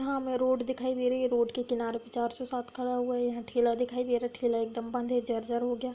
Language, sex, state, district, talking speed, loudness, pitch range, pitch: Hindi, female, Bihar, Darbhanga, 290 wpm, -31 LUFS, 235-250 Hz, 245 Hz